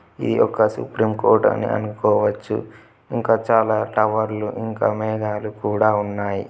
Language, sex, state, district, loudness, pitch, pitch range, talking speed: Telugu, male, Telangana, Nalgonda, -20 LUFS, 110 Hz, 105-110 Hz, 120 wpm